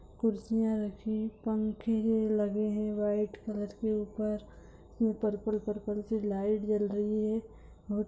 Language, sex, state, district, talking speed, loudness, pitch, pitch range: Hindi, female, Bihar, Lakhisarai, 125 wpm, -32 LUFS, 215 Hz, 210-220 Hz